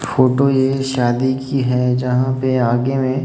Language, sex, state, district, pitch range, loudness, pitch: Hindi, male, Maharashtra, Gondia, 125-135 Hz, -17 LUFS, 130 Hz